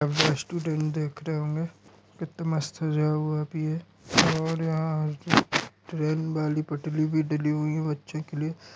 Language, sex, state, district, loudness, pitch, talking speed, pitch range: Hindi, male, Uttar Pradesh, Etah, -27 LUFS, 155 Hz, 155 wpm, 150-160 Hz